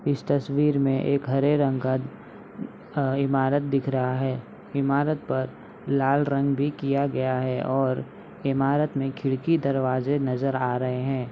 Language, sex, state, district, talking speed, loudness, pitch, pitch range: Hindi, female, Bihar, Saharsa, 155 wpm, -25 LUFS, 135 Hz, 130-140 Hz